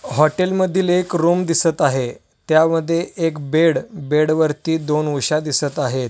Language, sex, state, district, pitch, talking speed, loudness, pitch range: Marathi, male, Maharashtra, Solapur, 160 Hz, 130 wpm, -18 LUFS, 150-170 Hz